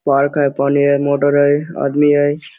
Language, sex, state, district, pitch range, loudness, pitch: Hindi, male, Jharkhand, Sahebganj, 140-145 Hz, -14 LUFS, 145 Hz